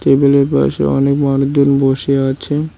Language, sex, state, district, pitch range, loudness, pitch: Bengali, male, West Bengal, Cooch Behar, 135-140 Hz, -14 LUFS, 140 Hz